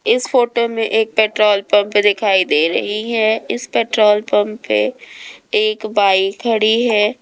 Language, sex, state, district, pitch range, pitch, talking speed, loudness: Hindi, female, Rajasthan, Jaipur, 205-230 Hz, 215 Hz, 150 wpm, -15 LUFS